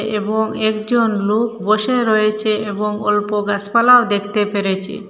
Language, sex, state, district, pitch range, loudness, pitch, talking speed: Bengali, female, Assam, Hailakandi, 205-220 Hz, -16 LUFS, 210 Hz, 120 wpm